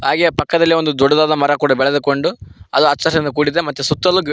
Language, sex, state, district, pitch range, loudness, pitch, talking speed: Kannada, male, Karnataka, Koppal, 145-165 Hz, -15 LUFS, 150 Hz, 210 wpm